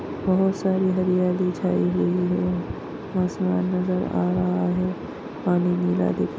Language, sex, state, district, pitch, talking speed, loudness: Hindi, female, Maharashtra, Nagpur, 180 Hz, 130 wpm, -23 LUFS